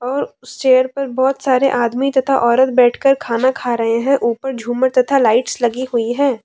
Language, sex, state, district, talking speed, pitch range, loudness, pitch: Hindi, female, Jharkhand, Deoghar, 195 wpm, 240-270 Hz, -16 LUFS, 255 Hz